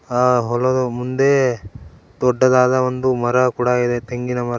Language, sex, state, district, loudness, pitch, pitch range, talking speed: Kannada, male, Karnataka, Koppal, -17 LUFS, 125 Hz, 120-130 Hz, 130 wpm